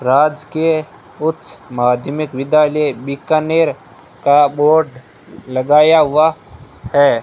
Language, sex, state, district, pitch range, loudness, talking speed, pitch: Hindi, male, Rajasthan, Bikaner, 135-155 Hz, -15 LUFS, 90 wpm, 150 Hz